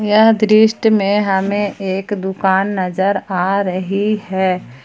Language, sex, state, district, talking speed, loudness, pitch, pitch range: Hindi, female, Jharkhand, Palamu, 125 wpm, -16 LUFS, 195 Hz, 190-210 Hz